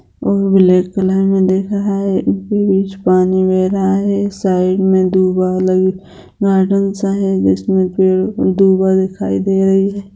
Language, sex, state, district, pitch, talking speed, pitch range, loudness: Hindi, female, Bihar, Jamui, 190 Hz, 155 wpm, 185-195 Hz, -14 LUFS